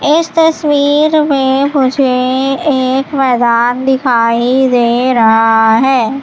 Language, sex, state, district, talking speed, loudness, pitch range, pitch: Hindi, female, Madhya Pradesh, Katni, 85 wpm, -11 LUFS, 240-285 Hz, 265 Hz